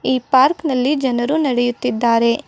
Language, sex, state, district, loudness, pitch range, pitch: Kannada, female, Karnataka, Bidar, -17 LUFS, 240-275 Hz, 255 Hz